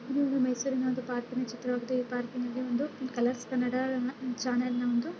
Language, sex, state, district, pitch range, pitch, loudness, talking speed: Kannada, female, Karnataka, Mysore, 245-255 Hz, 250 Hz, -32 LUFS, 150 wpm